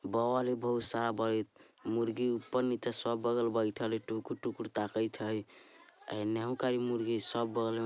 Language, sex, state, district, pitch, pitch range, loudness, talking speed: Bajjika, male, Bihar, Vaishali, 115 Hz, 110-120 Hz, -34 LUFS, 170 wpm